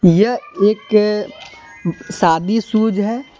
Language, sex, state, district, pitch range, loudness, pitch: Hindi, male, Jharkhand, Deoghar, 200-225 Hz, -17 LUFS, 210 Hz